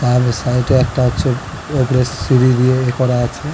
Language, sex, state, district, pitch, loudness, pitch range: Bengali, male, West Bengal, Dakshin Dinajpur, 125 Hz, -15 LUFS, 125-130 Hz